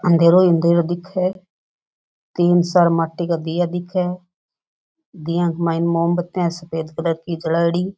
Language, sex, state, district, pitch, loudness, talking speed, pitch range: Rajasthani, female, Rajasthan, Nagaur, 175 Hz, -19 LUFS, 160 wpm, 170-180 Hz